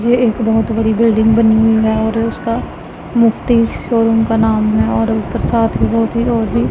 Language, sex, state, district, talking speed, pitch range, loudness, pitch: Hindi, female, Punjab, Pathankot, 215 wpm, 220-230 Hz, -14 LUFS, 225 Hz